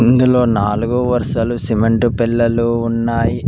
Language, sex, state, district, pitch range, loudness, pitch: Telugu, male, Telangana, Mahabubabad, 115-120 Hz, -15 LUFS, 115 Hz